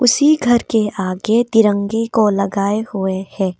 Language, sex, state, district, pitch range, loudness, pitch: Hindi, female, Arunachal Pradesh, Papum Pare, 195-230 Hz, -16 LUFS, 210 Hz